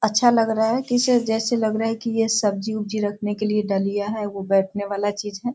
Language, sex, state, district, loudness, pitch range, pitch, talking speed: Hindi, female, Bihar, Sitamarhi, -22 LUFS, 205-225 Hz, 215 Hz, 250 wpm